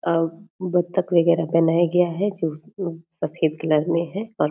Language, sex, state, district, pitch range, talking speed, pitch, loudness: Hindi, female, Bihar, Purnia, 165-180 Hz, 200 wpm, 170 Hz, -22 LUFS